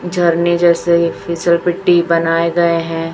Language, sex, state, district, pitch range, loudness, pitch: Hindi, female, Chhattisgarh, Raipur, 170-175 Hz, -14 LUFS, 170 Hz